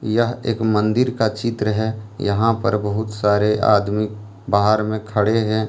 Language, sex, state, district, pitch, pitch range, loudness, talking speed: Hindi, male, Jharkhand, Deoghar, 110 Hz, 105-115 Hz, -19 LUFS, 160 wpm